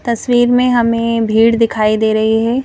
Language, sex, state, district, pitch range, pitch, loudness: Hindi, female, Madhya Pradesh, Bhopal, 220-240 Hz, 230 Hz, -13 LUFS